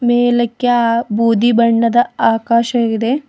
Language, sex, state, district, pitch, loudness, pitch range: Kannada, female, Karnataka, Bidar, 235 Hz, -14 LUFS, 230-240 Hz